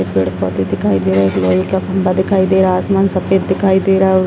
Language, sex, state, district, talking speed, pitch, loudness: Hindi, female, Uttar Pradesh, Etah, 280 wpm, 185 Hz, -14 LUFS